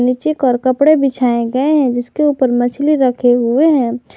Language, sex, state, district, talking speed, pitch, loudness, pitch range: Hindi, female, Jharkhand, Garhwa, 185 wpm, 255 Hz, -14 LUFS, 245-295 Hz